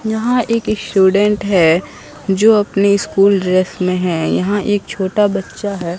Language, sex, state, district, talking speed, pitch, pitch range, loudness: Hindi, male, Bihar, Katihar, 150 wpm, 200 Hz, 185-205 Hz, -15 LUFS